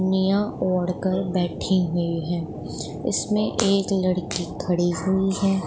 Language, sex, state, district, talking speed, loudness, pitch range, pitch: Hindi, female, Punjab, Pathankot, 125 wpm, -23 LUFS, 175-195 Hz, 185 Hz